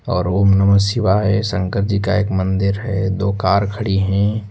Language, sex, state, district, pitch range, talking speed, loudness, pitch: Hindi, male, Uttar Pradesh, Lucknow, 95-105 Hz, 185 wpm, -17 LUFS, 100 Hz